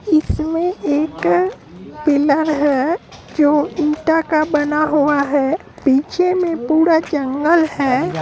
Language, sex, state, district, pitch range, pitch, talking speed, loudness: Hindi, female, Bihar, Supaul, 285-325 Hz, 300 Hz, 110 wpm, -17 LUFS